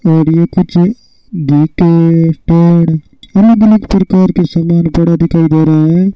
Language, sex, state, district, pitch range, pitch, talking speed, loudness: Hindi, male, Rajasthan, Bikaner, 165-185 Hz, 170 Hz, 145 wpm, -9 LUFS